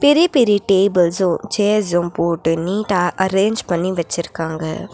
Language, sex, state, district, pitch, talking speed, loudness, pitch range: Tamil, female, Tamil Nadu, Nilgiris, 185 Hz, 110 wpm, -17 LUFS, 170-205 Hz